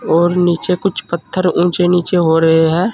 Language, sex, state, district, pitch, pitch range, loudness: Hindi, male, Uttar Pradesh, Saharanpur, 175 Hz, 170-180 Hz, -14 LUFS